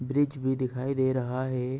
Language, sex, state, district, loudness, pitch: Hindi, male, Uttar Pradesh, Ghazipur, -29 LUFS, 130 Hz